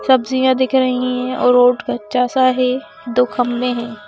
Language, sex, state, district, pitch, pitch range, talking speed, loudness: Hindi, female, Madhya Pradesh, Bhopal, 250 Hz, 245-260 Hz, 160 wpm, -16 LUFS